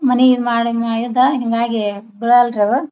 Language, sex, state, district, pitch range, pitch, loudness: Kannada, female, Karnataka, Bijapur, 230-250 Hz, 235 Hz, -16 LUFS